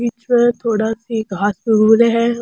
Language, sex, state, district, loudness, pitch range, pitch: Rajasthani, female, Rajasthan, Churu, -15 LUFS, 220-235 Hz, 230 Hz